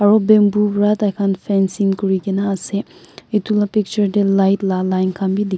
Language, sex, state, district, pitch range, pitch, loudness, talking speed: Nagamese, male, Nagaland, Kohima, 195-210 Hz, 200 Hz, -17 LUFS, 215 wpm